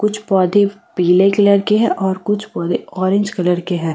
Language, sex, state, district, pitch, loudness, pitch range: Hindi, female, Delhi, New Delhi, 195 Hz, -16 LUFS, 180-205 Hz